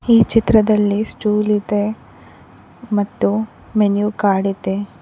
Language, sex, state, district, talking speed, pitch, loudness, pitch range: Kannada, female, Karnataka, Koppal, 95 wpm, 210 Hz, -17 LUFS, 205-215 Hz